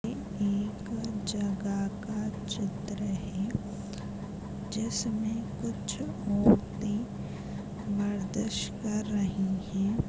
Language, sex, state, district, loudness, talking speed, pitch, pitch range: Hindi, female, Goa, North and South Goa, -32 LUFS, 70 wpm, 205 Hz, 200-215 Hz